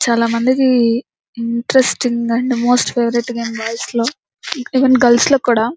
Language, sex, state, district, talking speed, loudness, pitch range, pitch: Telugu, female, Andhra Pradesh, Anantapur, 125 wpm, -15 LUFS, 235-255 Hz, 240 Hz